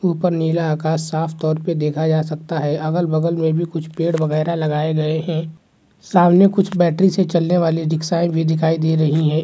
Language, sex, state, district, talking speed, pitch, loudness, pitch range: Hindi, male, Uttar Pradesh, Varanasi, 195 wpm, 160 Hz, -18 LUFS, 155-170 Hz